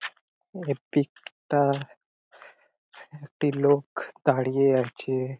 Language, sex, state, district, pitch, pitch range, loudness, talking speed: Bengali, male, West Bengal, Purulia, 140 Hz, 135-145 Hz, -26 LUFS, 90 wpm